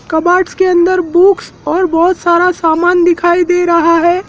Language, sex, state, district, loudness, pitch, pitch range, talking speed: Hindi, male, Madhya Pradesh, Dhar, -11 LUFS, 350 Hz, 340-360 Hz, 165 wpm